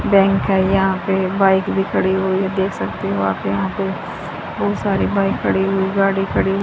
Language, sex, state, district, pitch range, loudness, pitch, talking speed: Hindi, female, Haryana, Rohtak, 190-195 Hz, -18 LUFS, 195 Hz, 210 wpm